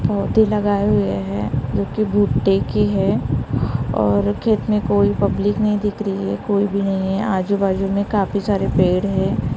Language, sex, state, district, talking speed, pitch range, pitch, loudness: Hindi, female, Maharashtra, Gondia, 180 wpm, 130-205 Hz, 195 Hz, -19 LUFS